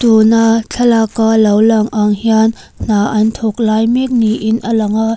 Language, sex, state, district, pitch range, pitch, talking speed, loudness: Mizo, female, Mizoram, Aizawl, 220-225 Hz, 220 Hz, 185 wpm, -12 LUFS